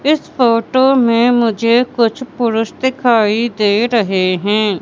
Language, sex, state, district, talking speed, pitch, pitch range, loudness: Hindi, female, Madhya Pradesh, Katni, 125 wpm, 230 Hz, 215-250 Hz, -14 LUFS